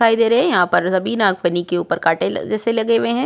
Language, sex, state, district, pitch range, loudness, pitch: Hindi, female, Uttarakhand, Tehri Garhwal, 175-230 Hz, -17 LUFS, 205 Hz